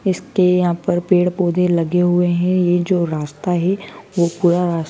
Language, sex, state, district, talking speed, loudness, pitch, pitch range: Hindi, female, Madhya Pradesh, Dhar, 185 wpm, -17 LUFS, 175 Hz, 175-180 Hz